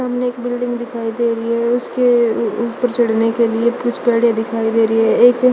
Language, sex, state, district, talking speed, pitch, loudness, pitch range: Hindi, female, Chandigarh, Chandigarh, 185 wpm, 235 Hz, -16 LUFS, 230-245 Hz